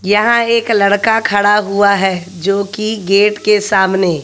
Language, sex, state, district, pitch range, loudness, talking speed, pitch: Hindi, male, Haryana, Jhajjar, 195-210 Hz, -13 LUFS, 140 wpm, 205 Hz